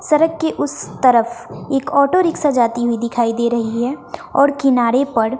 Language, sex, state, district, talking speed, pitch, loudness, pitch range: Hindi, female, Bihar, West Champaran, 175 wpm, 255 Hz, -17 LUFS, 235-290 Hz